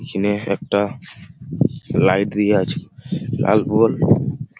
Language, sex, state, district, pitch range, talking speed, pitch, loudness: Bengali, male, West Bengal, Malda, 100-105 Hz, 105 wpm, 105 Hz, -19 LUFS